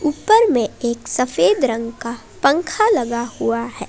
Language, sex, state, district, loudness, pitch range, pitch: Hindi, female, Jharkhand, Palamu, -18 LUFS, 230-325 Hz, 245 Hz